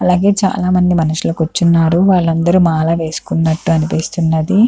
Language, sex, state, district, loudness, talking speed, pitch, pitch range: Telugu, female, Andhra Pradesh, Chittoor, -14 LUFS, 115 wpm, 165 Hz, 160-180 Hz